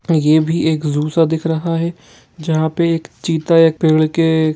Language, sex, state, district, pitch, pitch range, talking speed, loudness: Hindi, male, Jharkhand, Jamtara, 160 Hz, 155-165 Hz, 200 wpm, -15 LUFS